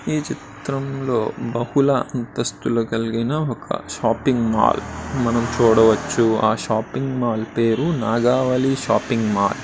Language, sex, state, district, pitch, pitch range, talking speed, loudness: Telugu, male, Andhra Pradesh, Srikakulam, 120 Hz, 115-135 Hz, 110 wpm, -20 LUFS